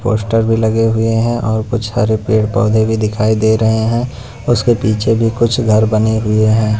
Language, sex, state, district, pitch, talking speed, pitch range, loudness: Hindi, male, Punjab, Pathankot, 110 Hz, 195 wpm, 110-115 Hz, -14 LUFS